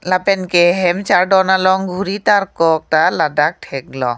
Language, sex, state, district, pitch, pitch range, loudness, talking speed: Karbi, female, Assam, Karbi Anglong, 180 Hz, 160-190 Hz, -14 LUFS, 160 wpm